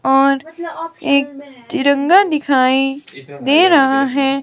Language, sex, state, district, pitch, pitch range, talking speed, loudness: Hindi, female, Himachal Pradesh, Shimla, 280 Hz, 270-320 Hz, 95 wpm, -14 LUFS